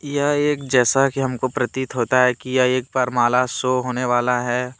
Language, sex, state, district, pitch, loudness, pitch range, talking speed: Hindi, male, Jharkhand, Deoghar, 125 Hz, -19 LUFS, 125-135 Hz, 215 wpm